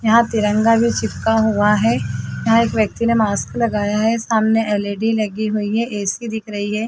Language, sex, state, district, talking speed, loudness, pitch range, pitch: Hindi, female, Chhattisgarh, Bilaspur, 190 wpm, -18 LUFS, 210-225 Hz, 220 Hz